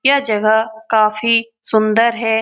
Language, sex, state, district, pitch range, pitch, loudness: Hindi, female, Bihar, Lakhisarai, 220-230 Hz, 220 Hz, -15 LUFS